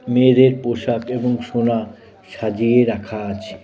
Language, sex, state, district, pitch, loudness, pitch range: Bengali, male, West Bengal, Cooch Behar, 120 Hz, -18 LUFS, 110-125 Hz